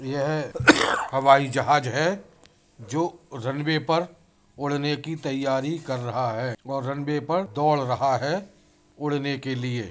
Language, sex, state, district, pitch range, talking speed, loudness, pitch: Hindi, male, Uttar Pradesh, Budaun, 135-155 Hz, 135 wpm, -24 LUFS, 140 Hz